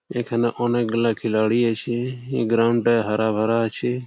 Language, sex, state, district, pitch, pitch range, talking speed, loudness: Bengali, male, West Bengal, Malda, 115 Hz, 115-120 Hz, 145 wpm, -21 LUFS